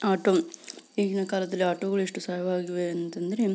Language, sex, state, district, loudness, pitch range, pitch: Kannada, female, Karnataka, Belgaum, -28 LUFS, 180-200 Hz, 190 Hz